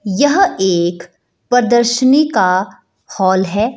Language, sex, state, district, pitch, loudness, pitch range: Hindi, female, Bihar, Jahanabad, 215 Hz, -13 LUFS, 190-255 Hz